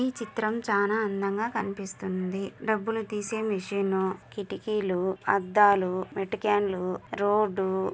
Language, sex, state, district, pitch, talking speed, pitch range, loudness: Telugu, female, Andhra Pradesh, Anantapur, 200 Hz, 90 wpm, 190-215 Hz, -28 LUFS